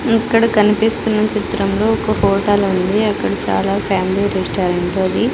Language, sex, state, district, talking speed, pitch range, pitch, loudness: Telugu, female, Andhra Pradesh, Sri Satya Sai, 125 wpm, 195-220 Hz, 205 Hz, -16 LUFS